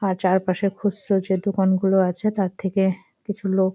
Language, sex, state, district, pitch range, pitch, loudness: Bengali, female, West Bengal, Jalpaiguri, 190-200 Hz, 190 Hz, -22 LUFS